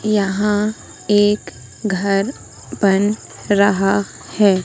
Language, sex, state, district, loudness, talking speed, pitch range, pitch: Hindi, female, Madhya Pradesh, Katni, -18 LUFS, 75 wpm, 195-210 Hz, 205 Hz